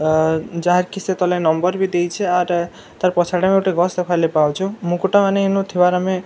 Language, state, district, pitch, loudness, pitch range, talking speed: Sambalpuri, Odisha, Sambalpur, 180 Hz, -18 LUFS, 175-190 Hz, 220 wpm